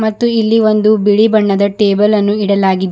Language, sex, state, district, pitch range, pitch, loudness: Kannada, female, Karnataka, Bidar, 200-220 Hz, 210 Hz, -12 LUFS